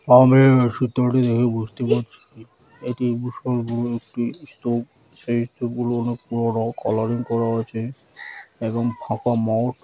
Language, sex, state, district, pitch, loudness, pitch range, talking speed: Bengali, male, West Bengal, Dakshin Dinajpur, 120 Hz, -21 LUFS, 115-125 Hz, 130 wpm